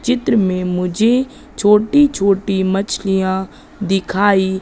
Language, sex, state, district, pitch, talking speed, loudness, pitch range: Hindi, female, Madhya Pradesh, Katni, 200 Hz, 90 wpm, -16 LUFS, 190-230 Hz